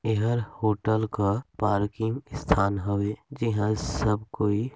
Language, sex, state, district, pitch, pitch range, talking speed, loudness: Hindi, male, Chhattisgarh, Sarguja, 110 Hz, 105-110 Hz, 125 wpm, -27 LUFS